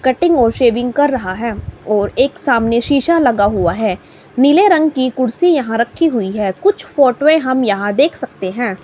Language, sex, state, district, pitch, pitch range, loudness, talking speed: Hindi, female, Himachal Pradesh, Shimla, 250 Hz, 220-290 Hz, -14 LUFS, 190 wpm